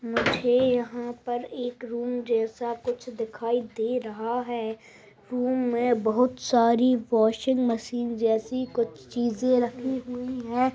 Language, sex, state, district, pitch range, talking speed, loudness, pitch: Hindi, female, Bihar, Saharsa, 230-250 Hz, 130 wpm, -26 LUFS, 240 Hz